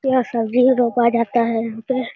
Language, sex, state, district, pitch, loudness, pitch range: Hindi, male, Bihar, Jamui, 240 Hz, -18 LUFS, 230-255 Hz